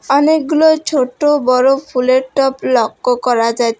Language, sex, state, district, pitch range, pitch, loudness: Bengali, female, West Bengal, Alipurduar, 250-295 Hz, 260 Hz, -14 LUFS